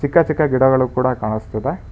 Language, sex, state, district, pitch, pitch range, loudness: Kannada, male, Karnataka, Bangalore, 130 Hz, 125-145 Hz, -17 LUFS